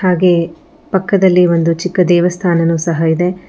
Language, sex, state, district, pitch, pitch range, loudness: Kannada, female, Karnataka, Bangalore, 180 Hz, 165-185 Hz, -13 LUFS